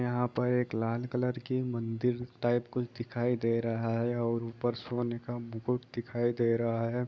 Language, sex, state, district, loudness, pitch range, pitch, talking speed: Hindi, male, Bihar, East Champaran, -32 LUFS, 115-125 Hz, 120 Hz, 185 wpm